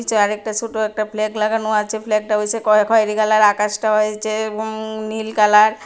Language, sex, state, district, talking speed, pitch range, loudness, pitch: Bengali, female, Tripura, West Tripura, 185 wpm, 215-220 Hz, -18 LUFS, 215 Hz